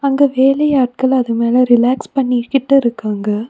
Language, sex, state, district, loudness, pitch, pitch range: Tamil, female, Tamil Nadu, Nilgiris, -14 LUFS, 255 Hz, 235-275 Hz